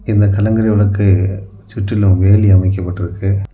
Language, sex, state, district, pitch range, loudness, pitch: Tamil, male, Tamil Nadu, Kanyakumari, 95-105 Hz, -13 LUFS, 100 Hz